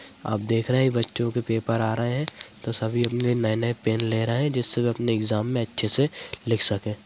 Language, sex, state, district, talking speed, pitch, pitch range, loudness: Hindi, female, Bihar, Madhepura, 230 wpm, 115 Hz, 110-120 Hz, -24 LUFS